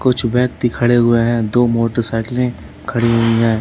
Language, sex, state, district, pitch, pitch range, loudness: Hindi, male, Uttar Pradesh, Lalitpur, 120 Hz, 115-120 Hz, -15 LUFS